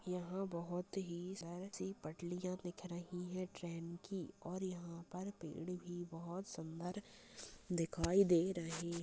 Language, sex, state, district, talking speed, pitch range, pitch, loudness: Hindi, female, Chhattisgarh, Balrampur, 145 wpm, 170-185 Hz, 175 Hz, -43 LUFS